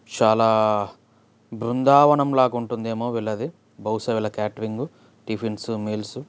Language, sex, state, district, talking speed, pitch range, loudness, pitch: Telugu, male, Andhra Pradesh, Chittoor, 105 wpm, 110-120 Hz, -22 LUFS, 110 Hz